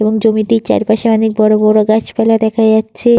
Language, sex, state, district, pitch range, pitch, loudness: Bengali, female, West Bengal, Purulia, 215-225 Hz, 220 Hz, -12 LUFS